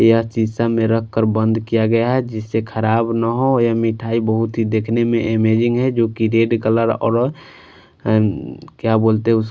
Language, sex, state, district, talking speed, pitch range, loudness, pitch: Hindi, male, Punjab, Fazilka, 145 wpm, 110-115 Hz, -17 LUFS, 115 Hz